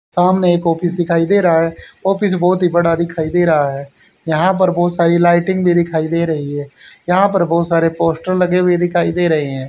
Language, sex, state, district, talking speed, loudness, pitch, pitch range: Hindi, male, Haryana, Charkhi Dadri, 225 wpm, -15 LUFS, 175 Hz, 165-180 Hz